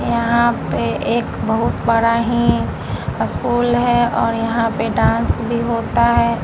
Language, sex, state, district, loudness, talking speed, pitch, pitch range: Hindi, female, Bihar, Patna, -17 LUFS, 140 wpm, 235 Hz, 230-235 Hz